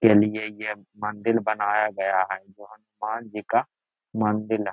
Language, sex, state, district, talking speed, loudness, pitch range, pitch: Hindi, male, Bihar, Araria, 140 wpm, -25 LUFS, 105-110 Hz, 105 Hz